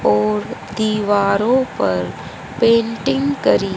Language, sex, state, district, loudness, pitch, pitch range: Hindi, female, Haryana, Rohtak, -17 LUFS, 215 Hz, 195-245 Hz